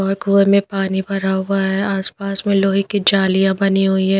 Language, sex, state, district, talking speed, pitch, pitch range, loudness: Hindi, female, Punjab, Pathankot, 215 wpm, 195 Hz, 195-200 Hz, -16 LUFS